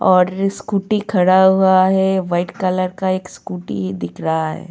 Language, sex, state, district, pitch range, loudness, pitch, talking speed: Hindi, female, Goa, North and South Goa, 175-190 Hz, -17 LUFS, 185 Hz, 165 wpm